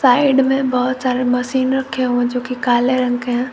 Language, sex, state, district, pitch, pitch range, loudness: Hindi, female, Jharkhand, Garhwa, 250 Hz, 250-260 Hz, -17 LUFS